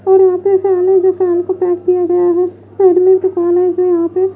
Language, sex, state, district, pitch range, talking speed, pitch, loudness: Hindi, female, Bihar, West Champaran, 355-375 Hz, 140 wpm, 365 Hz, -12 LUFS